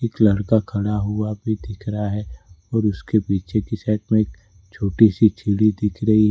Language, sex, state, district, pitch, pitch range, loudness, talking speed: Hindi, male, Gujarat, Valsad, 105 Hz, 100-110 Hz, -20 LUFS, 200 wpm